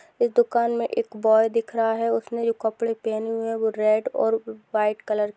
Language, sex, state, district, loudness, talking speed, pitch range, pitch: Hindi, female, Bihar, Begusarai, -23 LUFS, 225 wpm, 220-230 Hz, 225 Hz